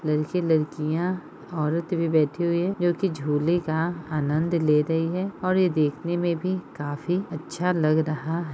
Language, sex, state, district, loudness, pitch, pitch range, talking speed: Hindi, female, Jharkhand, Jamtara, -25 LUFS, 165 Hz, 155-175 Hz, 175 wpm